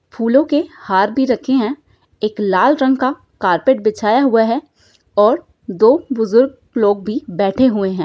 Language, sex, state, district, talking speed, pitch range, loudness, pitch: Hindi, female, Bihar, Saharsa, 165 wpm, 210-270 Hz, -15 LUFS, 240 Hz